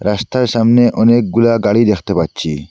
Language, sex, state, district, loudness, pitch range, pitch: Bengali, male, Assam, Hailakandi, -13 LUFS, 95-115 Hz, 115 Hz